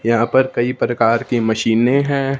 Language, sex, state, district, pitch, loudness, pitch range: Hindi, male, Punjab, Fazilka, 120 Hz, -16 LUFS, 115-135 Hz